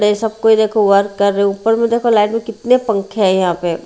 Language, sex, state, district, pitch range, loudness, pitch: Hindi, female, Haryana, Rohtak, 200-225 Hz, -14 LUFS, 210 Hz